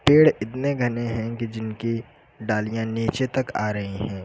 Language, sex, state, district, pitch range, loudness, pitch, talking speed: Hindi, male, Uttar Pradesh, Lucknow, 110-130 Hz, -24 LUFS, 115 Hz, 170 wpm